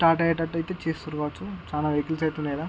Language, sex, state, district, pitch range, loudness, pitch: Telugu, male, Andhra Pradesh, Guntur, 150-165 Hz, -27 LUFS, 160 Hz